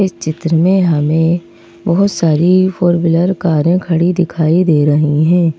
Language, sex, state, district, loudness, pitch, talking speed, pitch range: Hindi, female, Madhya Pradesh, Bhopal, -13 LUFS, 170 Hz, 140 wpm, 155-180 Hz